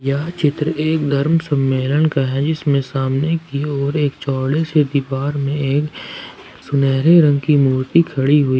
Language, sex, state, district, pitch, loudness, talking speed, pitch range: Hindi, male, Jharkhand, Ranchi, 145 Hz, -17 LUFS, 160 wpm, 135-150 Hz